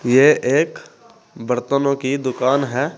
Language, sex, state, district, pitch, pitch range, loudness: Hindi, male, Uttar Pradesh, Saharanpur, 135 Hz, 125-140 Hz, -18 LUFS